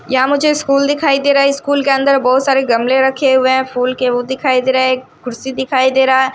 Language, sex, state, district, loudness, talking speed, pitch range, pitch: Hindi, female, Odisha, Sambalpur, -13 LUFS, 275 wpm, 260-275 Hz, 265 Hz